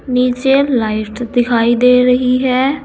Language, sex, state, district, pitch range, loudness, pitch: Hindi, female, Uttar Pradesh, Saharanpur, 240-255 Hz, -13 LUFS, 250 Hz